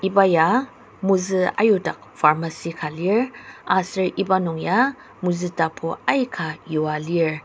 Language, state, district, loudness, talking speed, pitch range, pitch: Ao, Nagaland, Dimapur, -21 LUFS, 130 wpm, 165-205 Hz, 185 Hz